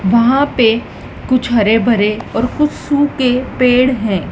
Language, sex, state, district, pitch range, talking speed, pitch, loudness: Hindi, female, Madhya Pradesh, Dhar, 225-260 Hz, 140 wpm, 245 Hz, -14 LUFS